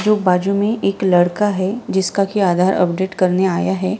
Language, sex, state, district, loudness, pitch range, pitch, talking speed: Hindi, female, Maharashtra, Gondia, -17 LUFS, 185-200 Hz, 190 Hz, 195 wpm